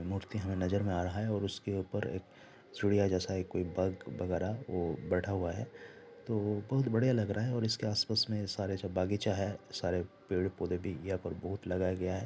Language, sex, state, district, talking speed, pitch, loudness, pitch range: Hindi, male, Jharkhand, Sahebganj, 215 wpm, 95 Hz, -35 LUFS, 90-105 Hz